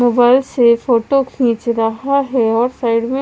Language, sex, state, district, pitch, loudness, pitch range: Hindi, female, Chandigarh, Chandigarh, 240 Hz, -15 LUFS, 230-260 Hz